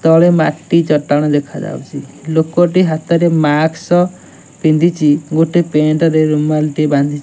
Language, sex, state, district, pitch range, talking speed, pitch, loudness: Odia, male, Odisha, Nuapada, 150-170 Hz, 140 wpm, 155 Hz, -13 LUFS